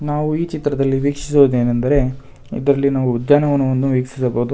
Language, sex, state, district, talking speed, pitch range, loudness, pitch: Kannada, male, Karnataka, Bangalore, 105 wpm, 130-145 Hz, -17 LUFS, 135 Hz